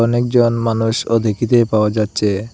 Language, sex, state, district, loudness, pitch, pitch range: Bengali, male, Assam, Hailakandi, -16 LUFS, 115 Hz, 110-115 Hz